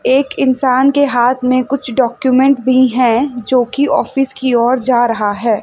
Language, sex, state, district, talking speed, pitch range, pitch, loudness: Hindi, female, Chandigarh, Chandigarh, 180 wpm, 245-265 Hz, 255 Hz, -13 LUFS